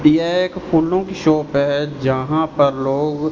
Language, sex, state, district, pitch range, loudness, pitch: Hindi, male, Punjab, Fazilka, 140-165 Hz, -18 LUFS, 150 Hz